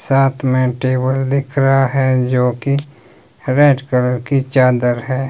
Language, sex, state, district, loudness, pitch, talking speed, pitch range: Hindi, male, Himachal Pradesh, Shimla, -15 LUFS, 130 Hz, 145 wpm, 125-135 Hz